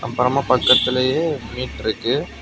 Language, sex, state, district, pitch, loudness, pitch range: Tamil, male, Tamil Nadu, Kanyakumari, 125 Hz, -19 LUFS, 120-130 Hz